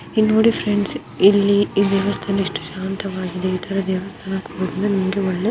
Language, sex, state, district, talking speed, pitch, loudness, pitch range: Kannada, female, Karnataka, Bijapur, 150 wpm, 195 Hz, -20 LUFS, 190-200 Hz